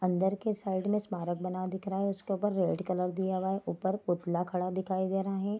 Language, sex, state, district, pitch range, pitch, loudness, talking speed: Hindi, female, Bihar, Darbhanga, 185-195 Hz, 190 Hz, -32 LUFS, 245 wpm